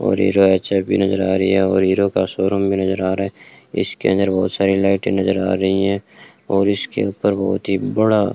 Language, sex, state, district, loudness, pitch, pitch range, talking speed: Hindi, male, Rajasthan, Bikaner, -18 LUFS, 95 Hz, 95-100 Hz, 235 wpm